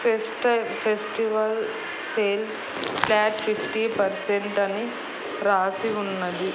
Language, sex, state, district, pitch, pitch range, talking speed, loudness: Telugu, female, Andhra Pradesh, Annamaya, 215 Hz, 200-220 Hz, 90 wpm, -25 LUFS